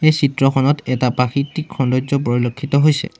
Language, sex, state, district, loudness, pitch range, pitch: Assamese, male, Assam, Sonitpur, -17 LUFS, 130-145 Hz, 140 Hz